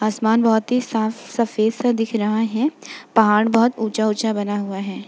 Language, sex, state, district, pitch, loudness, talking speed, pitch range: Hindi, female, Uttar Pradesh, Jalaun, 220 Hz, -19 LUFS, 190 wpm, 215-230 Hz